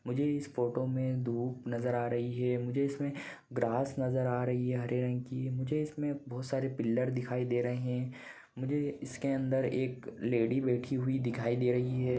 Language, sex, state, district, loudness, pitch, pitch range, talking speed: Hindi, male, Maharashtra, Pune, -34 LUFS, 125 Hz, 125-135 Hz, 195 wpm